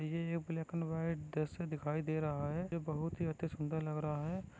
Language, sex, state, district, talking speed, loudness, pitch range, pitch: Hindi, male, Maharashtra, Dhule, 220 wpm, -39 LUFS, 155-165 Hz, 160 Hz